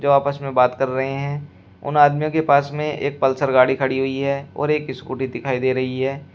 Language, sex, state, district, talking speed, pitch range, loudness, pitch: Hindi, male, Uttar Pradesh, Shamli, 235 wpm, 130-145 Hz, -20 LUFS, 140 Hz